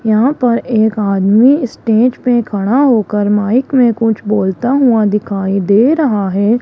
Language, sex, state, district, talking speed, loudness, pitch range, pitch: Hindi, female, Rajasthan, Jaipur, 155 wpm, -12 LUFS, 205-245 Hz, 225 Hz